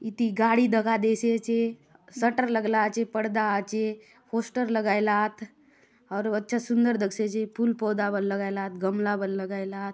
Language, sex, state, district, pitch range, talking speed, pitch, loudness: Halbi, female, Chhattisgarh, Bastar, 205-230 Hz, 180 wpm, 220 Hz, -26 LUFS